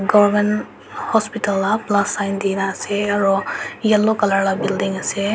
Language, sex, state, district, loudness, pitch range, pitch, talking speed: Nagamese, male, Nagaland, Dimapur, -19 LUFS, 195-210 Hz, 205 Hz, 170 wpm